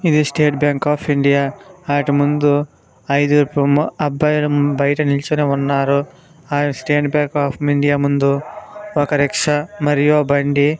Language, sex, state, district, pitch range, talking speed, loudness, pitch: Telugu, male, Andhra Pradesh, Srikakulam, 140-150 Hz, 115 wpm, -17 LUFS, 145 Hz